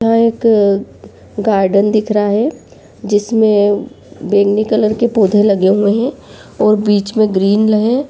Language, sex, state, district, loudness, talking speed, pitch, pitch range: Hindi, female, Uttar Pradesh, Varanasi, -13 LUFS, 140 wpm, 210 Hz, 205-220 Hz